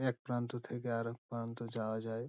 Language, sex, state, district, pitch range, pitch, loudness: Bengali, male, West Bengal, Dakshin Dinajpur, 115-120 Hz, 115 Hz, -40 LUFS